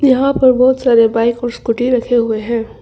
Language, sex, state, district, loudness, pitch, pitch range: Hindi, female, Arunachal Pradesh, Longding, -13 LUFS, 240 Hz, 230-255 Hz